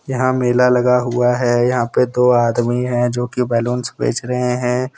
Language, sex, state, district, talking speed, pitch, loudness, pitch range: Hindi, male, Jharkhand, Deoghar, 180 wpm, 125 Hz, -16 LUFS, 120-125 Hz